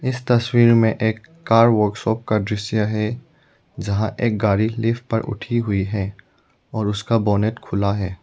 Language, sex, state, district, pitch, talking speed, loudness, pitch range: Hindi, male, Arunachal Pradesh, Lower Dibang Valley, 110 Hz, 160 wpm, -20 LUFS, 105-115 Hz